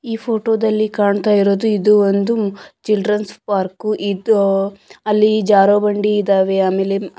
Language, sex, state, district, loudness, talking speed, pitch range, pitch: Kannada, female, Karnataka, Gulbarga, -16 LUFS, 110 wpm, 195-215 Hz, 210 Hz